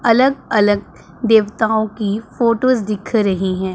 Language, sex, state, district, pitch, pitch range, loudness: Hindi, female, Punjab, Pathankot, 220 Hz, 205-230 Hz, -17 LUFS